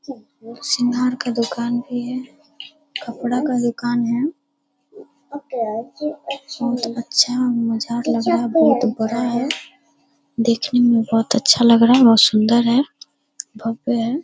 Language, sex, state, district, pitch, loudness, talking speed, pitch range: Hindi, female, Bihar, Darbhanga, 245 Hz, -18 LUFS, 120 wpm, 235-270 Hz